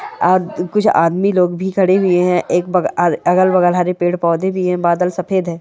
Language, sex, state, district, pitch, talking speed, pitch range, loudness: Angika, female, Bihar, Madhepura, 180 Hz, 205 wpm, 175-190 Hz, -15 LUFS